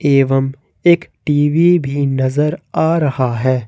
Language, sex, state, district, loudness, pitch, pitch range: Hindi, male, Jharkhand, Ranchi, -15 LUFS, 140 Hz, 135-160 Hz